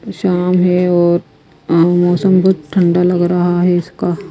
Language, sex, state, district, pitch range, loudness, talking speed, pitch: Hindi, female, Himachal Pradesh, Shimla, 175-180 Hz, -13 LUFS, 155 wpm, 180 Hz